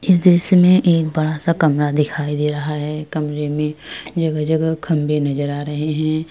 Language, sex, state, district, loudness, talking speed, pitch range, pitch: Hindi, female, Uttar Pradesh, Jyotiba Phule Nagar, -18 LUFS, 180 wpm, 150-160 Hz, 155 Hz